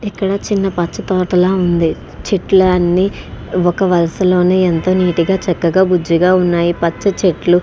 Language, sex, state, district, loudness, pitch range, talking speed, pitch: Telugu, female, Andhra Pradesh, Srikakulam, -14 LUFS, 175-190 Hz, 140 wpm, 180 Hz